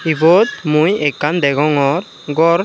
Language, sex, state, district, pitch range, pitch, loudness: Chakma, male, Tripura, Unakoti, 145-175 Hz, 155 Hz, -14 LUFS